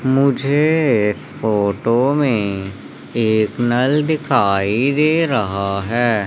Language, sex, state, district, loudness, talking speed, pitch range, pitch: Hindi, male, Madhya Pradesh, Umaria, -17 LUFS, 85 wpm, 100-140 Hz, 120 Hz